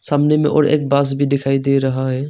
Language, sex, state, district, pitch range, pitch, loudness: Hindi, male, Arunachal Pradesh, Longding, 135-150 Hz, 140 Hz, -16 LUFS